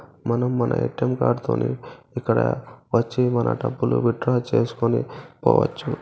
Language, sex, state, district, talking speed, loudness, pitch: Telugu, male, Telangana, Karimnagar, 150 wpm, -22 LUFS, 115 Hz